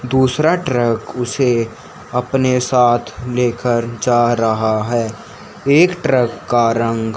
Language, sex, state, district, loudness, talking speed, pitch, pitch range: Hindi, male, Haryana, Charkhi Dadri, -16 LUFS, 110 wpm, 120 Hz, 115-125 Hz